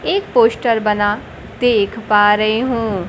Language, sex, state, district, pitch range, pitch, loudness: Hindi, female, Bihar, Kaimur, 210-245 Hz, 220 Hz, -15 LUFS